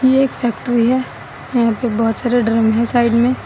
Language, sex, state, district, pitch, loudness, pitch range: Hindi, female, Assam, Sonitpur, 240 Hz, -16 LUFS, 230-250 Hz